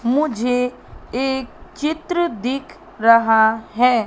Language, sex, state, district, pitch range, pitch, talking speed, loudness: Hindi, female, Madhya Pradesh, Katni, 230-310 Hz, 250 Hz, 90 wpm, -19 LUFS